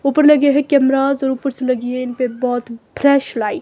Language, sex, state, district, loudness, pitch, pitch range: Hindi, female, Himachal Pradesh, Shimla, -16 LUFS, 270 Hz, 250-280 Hz